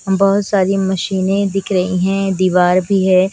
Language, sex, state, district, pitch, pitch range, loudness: Hindi, female, Punjab, Kapurthala, 190 Hz, 185-195 Hz, -15 LUFS